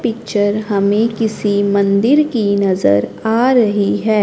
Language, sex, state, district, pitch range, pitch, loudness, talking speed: Hindi, male, Punjab, Fazilka, 200-225 Hz, 210 Hz, -14 LUFS, 130 wpm